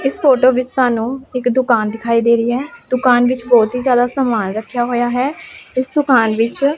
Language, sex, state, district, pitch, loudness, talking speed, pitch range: Punjabi, female, Punjab, Pathankot, 250 Hz, -15 LUFS, 205 wpm, 235-260 Hz